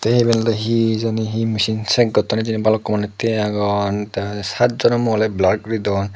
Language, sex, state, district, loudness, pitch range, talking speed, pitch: Chakma, male, Tripura, Unakoti, -18 LUFS, 105-115 Hz, 185 wpm, 110 Hz